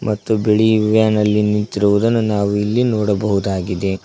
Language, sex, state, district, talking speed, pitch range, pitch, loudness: Kannada, male, Karnataka, Koppal, 120 wpm, 100-110 Hz, 105 Hz, -16 LUFS